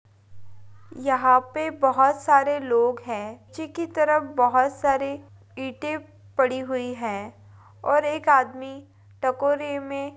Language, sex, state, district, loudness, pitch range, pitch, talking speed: Hindi, female, Bihar, Madhepura, -23 LUFS, 205-285 Hz, 260 Hz, 125 wpm